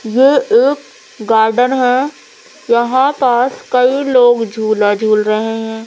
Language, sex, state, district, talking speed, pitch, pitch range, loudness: Hindi, female, Madhya Pradesh, Umaria, 125 wpm, 245 Hz, 220-270 Hz, -13 LUFS